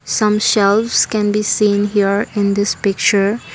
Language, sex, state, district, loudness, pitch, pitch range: English, female, Assam, Kamrup Metropolitan, -15 LUFS, 205 Hz, 200-210 Hz